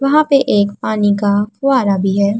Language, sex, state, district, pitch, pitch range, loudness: Hindi, female, Uttar Pradesh, Muzaffarnagar, 205 Hz, 200-270 Hz, -14 LUFS